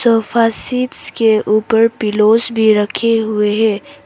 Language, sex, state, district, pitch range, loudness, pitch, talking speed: Hindi, female, Arunachal Pradesh, Papum Pare, 215-230 Hz, -14 LUFS, 225 Hz, 135 wpm